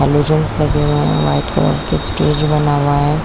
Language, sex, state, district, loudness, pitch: Hindi, female, Chhattisgarh, Korba, -15 LUFS, 145 Hz